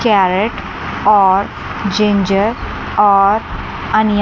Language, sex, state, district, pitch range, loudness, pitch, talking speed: Hindi, female, Chandigarh, Chandigarh, 195-210 Hz, -14 LUFS, 205 Hz, 85 wpm